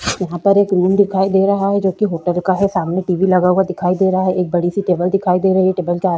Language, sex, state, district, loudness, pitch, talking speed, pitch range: Hindi, female, Goa, North and South Goa, -16 LUFS, 185 Hz, 310 wpm, 180-195 Hz